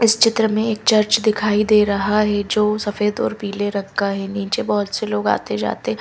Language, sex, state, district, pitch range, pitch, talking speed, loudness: Hindi, female, Madhya Pradesh, Bhopal, 200-215 Hz, 210 Hz, 230 wpm, -18 LUFS